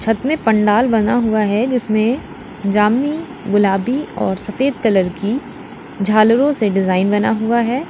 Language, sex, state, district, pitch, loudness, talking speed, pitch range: Hindi, female, Uttar Pradesh, Lalitpur, 220 Hz, -16 LUFS, 145 wpm, 205-250 Hz